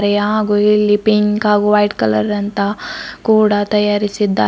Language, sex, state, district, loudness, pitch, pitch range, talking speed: Kannada, female, Karnataka, Bidar, -14 LUFS, 210 Hz, 205-210 Hz, 135 wpm